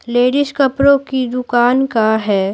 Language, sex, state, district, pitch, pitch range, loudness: Hindi, female, Bihar, Patna, 250 Hz, 235-270 Hz, -14 LUFS